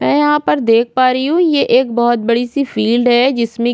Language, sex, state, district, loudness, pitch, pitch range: Hindi, female, Chhattisgarh, Korba, -13 LUFS, 245 Hz, 235-275 Hz